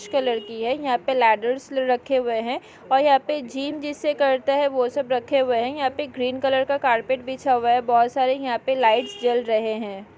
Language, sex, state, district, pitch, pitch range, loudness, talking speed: Hindi, female, Uttarakhand, Tehri Garhwal, 255 Hz, 240-275 Hz, -22 LUFS, 225 wpm